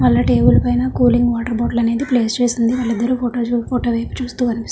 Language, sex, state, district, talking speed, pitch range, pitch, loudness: Telugu, female, Andhra Pradesh, Visakhapatnam, 190 wpm, 195-245 Hz, 235 Hz, -17 LUFS